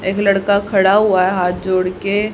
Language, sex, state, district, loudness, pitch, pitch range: Hindi, female, Haryana, Charkhi Dadri, -15 LUFS, 195 Hz, 185-200 Hz